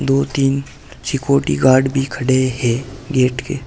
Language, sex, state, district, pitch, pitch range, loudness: Hindi, male, Uttar Pradesh, Saharanpur, 130 Hz, 130-135 Hz, -17 LUFS